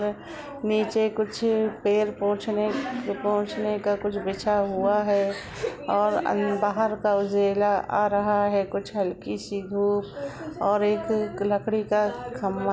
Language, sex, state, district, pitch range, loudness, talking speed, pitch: Hindi, female, Uttar Pradesh, Budaun, 200-215 Hz, -25 LUFS, 140 wpm, 205 Hz